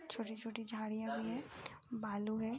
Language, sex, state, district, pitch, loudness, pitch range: Hindi, female, Uttar Pradesh, Ghazipur, 225 Hz, -43 LUFS, 220-230 Hz